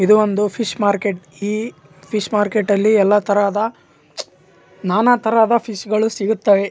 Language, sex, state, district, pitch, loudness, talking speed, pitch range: Kannada, male, Karnataka, Raichur, 210 Hz, -17 LUFS, 125 wpm, 200-220 Hz